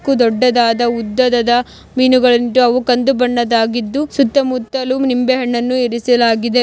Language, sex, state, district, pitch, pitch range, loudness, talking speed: Kannada, female, Karnataka, Mysore, 245 Hz, 235-255 Hz, -14 LUFS, 100 wpm